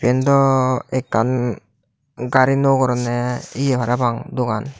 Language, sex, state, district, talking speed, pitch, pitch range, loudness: Chakma, male, Tripura, Dhalai, 115 wpm, 125 Hz, 120-135 Hz, -18 LUFS